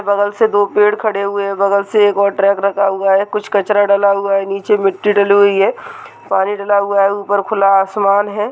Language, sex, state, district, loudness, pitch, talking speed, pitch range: Hindi, male, Uttar Pradesh, Hamirpur, -14 LUFS, 200 Hz, 245 wpm, 200-205 Hz